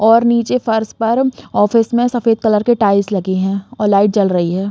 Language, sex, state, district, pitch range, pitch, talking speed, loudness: Hindi, female, Uttar Pradesh, Hamirpur, 200-235 Hz, 220 Hz, 215 wpm, -14 LUFS